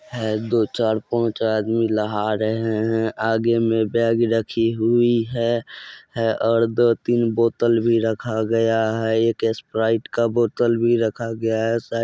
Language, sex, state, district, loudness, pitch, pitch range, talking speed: Maithili, male, Bihar, Madhepura, -20 LUFS, 115 Hz, 110-115 Hz, 160 wpm